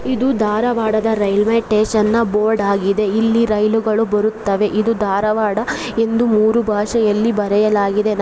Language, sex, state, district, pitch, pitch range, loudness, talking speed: Kannada, female, Karnataka, Dharwad, 215 Hz, 210-225 Hz, -16 LUFS, 140 wpm